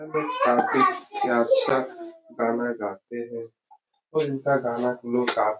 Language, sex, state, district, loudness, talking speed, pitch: Hindi, male, Uttar Pradesh, Etah, -24 LUFS, 130 wpm, 135 Hz